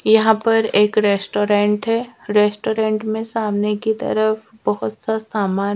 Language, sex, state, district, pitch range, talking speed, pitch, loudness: Hindi, female, Madhya Pradesh, Dhar, 205-220 Hz, 135 wpm, 215 Hz, -18 LUFS